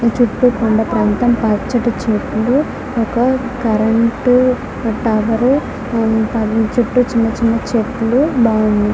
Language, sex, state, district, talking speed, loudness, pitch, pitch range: Telugu, female, Andhra Pradesh, Guntur, 95 wpm, -15 LUFS, 230 Hz, 220-250 Hz